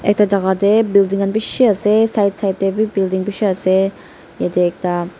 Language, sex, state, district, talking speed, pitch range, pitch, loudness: Nagamese, female, Nagaland, Dimapur, 185 wpm, 190-210 Hz, 195 Hz, -16 LUFS